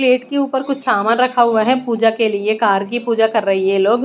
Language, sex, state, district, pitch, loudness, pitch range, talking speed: Hindi, female, Odisha, Malkangiri, 230 Hz, -16 LUFS, 215-255 Hz, 280 wpm